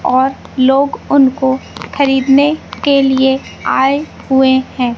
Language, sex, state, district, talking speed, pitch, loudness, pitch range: Hindi, female, Madhya Pradesh, Katni, 110 wpm, 265 Hz, -13 LUFS, 260-280 Hz